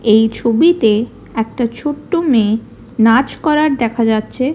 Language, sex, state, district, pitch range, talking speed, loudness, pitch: Bengali, female, Odisha, Khordha, 225-290 Hz, 120 wpm, -15 LUFS, 235 Hz